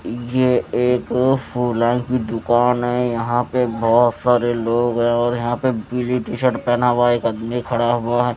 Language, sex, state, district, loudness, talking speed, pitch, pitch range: Hindi, male, Odisha, Nuapada, -18 LUFS, 170 wpm, 120 Hz, 120-125 Hz